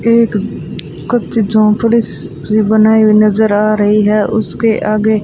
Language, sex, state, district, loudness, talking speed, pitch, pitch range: Hindi, female, Rajasthan, Bikaner, -12 LUFS, 135 wpm, 215 Hz, 210-220 Hz